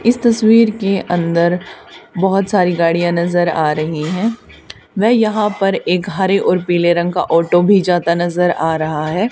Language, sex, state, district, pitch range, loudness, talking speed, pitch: Hindi, female, Haryana, Charkhi Dadri, 170-200 Hz, -15 LUFS, 175 wpm, 180 Hz